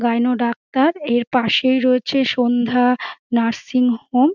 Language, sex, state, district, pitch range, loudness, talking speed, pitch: Bengali, female, West Bengal, Dakshin Dinajpur, 240-260 Hz, -18 LUFS, 125 wpm, 250 Hz